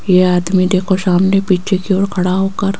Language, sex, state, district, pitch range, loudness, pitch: Hindi, female, Rajasthan, Jaipur, 185-195 Hz, -14 LUFS, 190 Hz